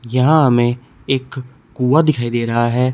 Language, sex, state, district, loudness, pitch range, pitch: Hindi, male, Uttar Pradesh, Shamli, -16 LUFS, 120-135 Hz, 125 Hz